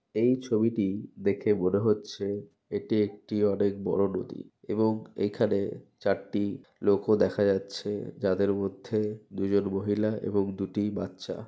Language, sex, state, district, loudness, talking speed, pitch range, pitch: Bengali, male, West Bengal, North 24 Parganas, -29 LUFS, 120 wpm, 100-105 Hz, 100 Hz